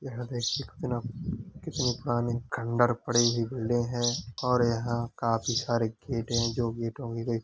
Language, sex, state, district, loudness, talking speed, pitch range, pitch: Hindi, male, Uttar Pradesh, Hamirpur, -29 LUFS, 175 wpm, 115-125 Hz, 120 Hz